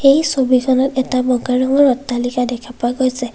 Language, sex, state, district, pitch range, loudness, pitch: Assamese, female, Assam, Kamrup Metropolitan, 245-265 Hz, -16 LUFS, 255 Hz